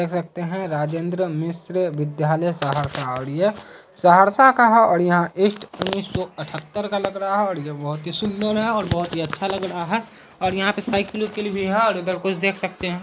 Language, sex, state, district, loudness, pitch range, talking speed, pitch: Hindi, male, Bihar, Saharsa, -21 LUFS, 170-205 Hz, 225 wpm, 185 Hz